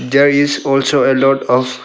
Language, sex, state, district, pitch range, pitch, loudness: English, male, Arunachal Pradesh, Longding, 130-140 Hz, 135 Hz, -13 LUFS